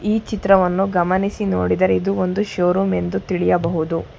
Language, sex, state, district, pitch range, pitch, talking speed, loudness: Kannada, female, Karnataka, Bangalore, 165-195 Hz, 185 Hz, 130 wpm, -19 LUFS